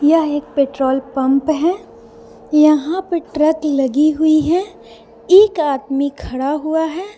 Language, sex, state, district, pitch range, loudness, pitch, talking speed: Hindi, female, Bihar, Patna, 275-320 Hz, -16 LUFS, 300 Hz, 135 wpm